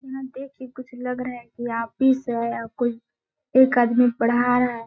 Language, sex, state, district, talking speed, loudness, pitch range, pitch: Hindi, female, Chhattisgarh, Balrampur, 195 wpm, -22 LUFS, 235-260 Hz, 245 Hz